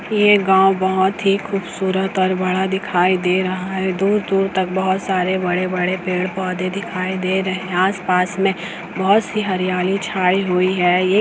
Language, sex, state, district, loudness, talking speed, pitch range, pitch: Hindi, female, Bihar, Sitamarhi, -18 LUFS, 155 wpm, 185-195 Hz, 190 Hz